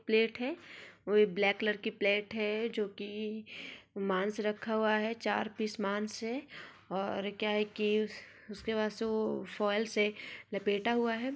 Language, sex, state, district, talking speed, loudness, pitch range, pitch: Hindi, female, Bihar, Saran, 160 wpm, -34 LUFS, 205-220 Hz, 215 Hz